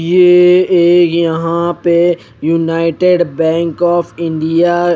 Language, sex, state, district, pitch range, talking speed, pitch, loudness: Hindi, male, Odisha, Khordha, 165-175 Hz, 110 wpm, 170 Hz, -12 LUFS